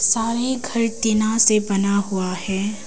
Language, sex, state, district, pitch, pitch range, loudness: Hindi, female, Arunachal Pradesh, Papum Pare, 215 Hz, 200-230 Hz, -19 LUFS